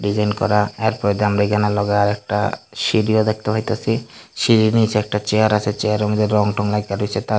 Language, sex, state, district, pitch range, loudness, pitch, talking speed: Bengali, male, Tripura, Dhalai, 105-110 Hz, -18 LUFS, 105 Hz, 205 wpm